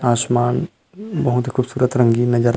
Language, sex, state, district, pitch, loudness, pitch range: Chhattisgarhi, male, Chhattisgarh, Rajnandgaon, 125 Hz, -18 LUFS, 120-130 Hz